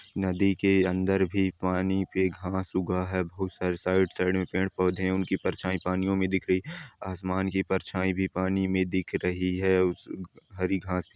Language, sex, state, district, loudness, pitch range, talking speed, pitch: Hindi, male, Chhattisgarh, Balrampur, -28 LUFS, 90-95 Hz, 195 wpm, 95 Hz